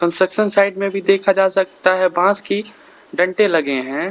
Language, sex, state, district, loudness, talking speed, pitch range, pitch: Hindi, male, Arunachal Pradesh, Lower Dibang Valley, -17 LUFS, 190 wpm, 180-200 Hz, 190 Hz